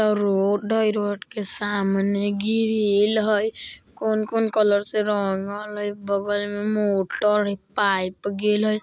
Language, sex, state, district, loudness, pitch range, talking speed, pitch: Bajjika, female, Bihar, Vaishali, -22 LUFS, 200-215 Hz, 135 wpm, 205 Hz